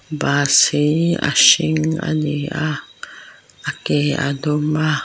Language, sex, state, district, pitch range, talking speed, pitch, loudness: Mizo, female, Mizoram, Aizawl, 145-155 Hz, 140 wpm, 150 Hz, -17 LUFS